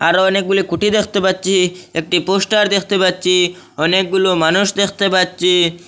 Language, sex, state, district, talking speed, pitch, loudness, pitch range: Bengali, male, Assam, Hailakandi, 135 wpm, 185 Hz, -15 LUFS, 180-195 Hz